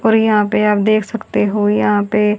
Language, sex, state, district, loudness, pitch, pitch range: Hindi, female, Haryana, Jhajjar, -15 LUFS, 210 Hz, 210-215 Hz